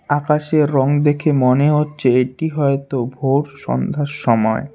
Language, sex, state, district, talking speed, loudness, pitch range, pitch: Bengali, male, West Bengal, Alipurduar, 125 wpm, -17 LUFS, 130-150 Hz, 145 Hz